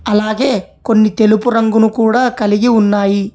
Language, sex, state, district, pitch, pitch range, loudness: Telugu, male, Telangana, Hyderabad, 220 Hz, 210-230 Hz, -13 LUFS